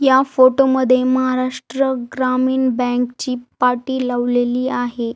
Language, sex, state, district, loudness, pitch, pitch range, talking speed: Marathi, female, Maharashtra, Aurangabad, -17 LUFS, 255 Hz, 245-260 Hz, 115 wpm